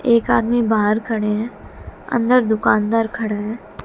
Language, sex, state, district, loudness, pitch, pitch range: Hindi, female, Haryana, Jhajjar, -18 LUFS, 225 Hz, 215-235 Hz